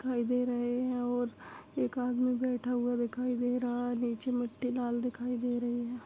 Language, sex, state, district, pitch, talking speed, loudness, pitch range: Hindi, female, Chhattisgarh, Bastar, 245 Hz, 200 wpm, -33 LUFS, 240-250 Hz